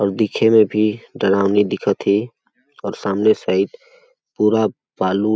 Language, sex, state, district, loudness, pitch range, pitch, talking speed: Awadhi, male, Chhattisgarh, Balrampur, -18 LUFS, 100-110 Hz, 110 Hz, 145 wpm